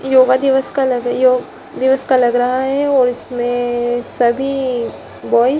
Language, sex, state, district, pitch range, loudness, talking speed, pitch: Hindi, female, Bihar, Gaya, 245-265 Hz, -15 LUFS, 160 wpm, 255 Hz